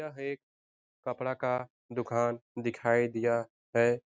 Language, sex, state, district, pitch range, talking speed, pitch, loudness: Hindi, male, Bihar, Jahanabad, 115-125 Hz, 105 wpm, 120 Hz, -32 LUFS